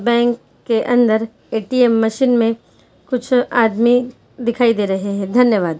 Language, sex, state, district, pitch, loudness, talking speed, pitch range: Hindi, female, Jharkhand, Jamtara, 235 Hz, -16 LUFS, 145 wpm, 220-245 Hz